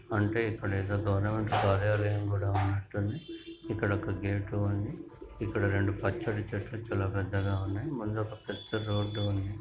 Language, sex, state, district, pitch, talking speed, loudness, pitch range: Telugu, female, Andhra Pradesh, Krishna, 105 Hz, 125 wpm, -32 LUFS, 100-110 Hz